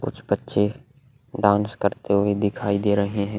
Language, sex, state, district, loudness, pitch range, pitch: Hindi, male, Chhattisgarh, Kabirdham, -23 LUFS, 100-105 Hz, 105 Hz